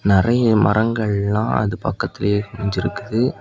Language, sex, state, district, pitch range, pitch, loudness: Tamil, male, Tamil Nadu, Kanyakumari, 100-115 Hz, 105 Hz, -19 LUFS